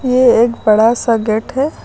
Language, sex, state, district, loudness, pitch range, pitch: Hindi, female, Uttar Pradesh, Lucknow, -13 LUFS, 225-255 Hz, 235 Hz